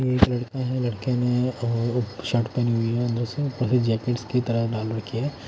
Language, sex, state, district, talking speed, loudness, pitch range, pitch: Hindi, male, Odisha, Khordha, 210 wpm, -25 LUFS, 115-125 Hz, 120 Hz